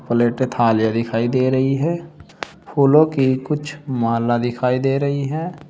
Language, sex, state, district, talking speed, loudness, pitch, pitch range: Hindi, male, Uttar Pradesh, Saharanpur, 150 wpm, -19 LUFS, 130 Hz, 120-145 Hz